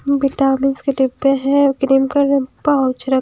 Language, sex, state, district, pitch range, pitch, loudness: Hindi, female, Himachal Pradesh, Shimla, 270-280 Hz, 275 Hz, -16 LUFS